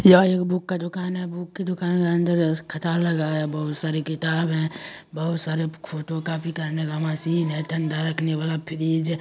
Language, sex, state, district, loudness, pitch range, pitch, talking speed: Hindi, male, Bihar, Saharsa, -24 LUFS, 155-170 Hz, 160 Hz, 200 wpm